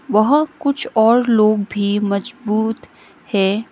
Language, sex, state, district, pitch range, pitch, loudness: Hindi, female, Sikkim, Gangtok, 205-240 Hz, 220 Hz, -17 LUFS